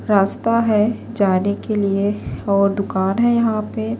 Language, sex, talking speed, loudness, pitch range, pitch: Urdu, female, 150 wpm, -18 LUFS, 200-225 Hz, 210 Hz